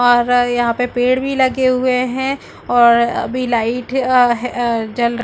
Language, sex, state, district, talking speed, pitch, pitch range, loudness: Hindi, female, Chhattisgarh, Bilaspur, 185 wpm, 245 Hz, 240-255 Hz, -15 LUFS